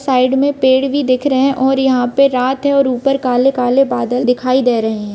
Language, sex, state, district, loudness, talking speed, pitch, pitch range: Hindi, female, Bihar, Vaishali, -14 LUFS, 270 wpm, 260 Hz, 250-275 Hz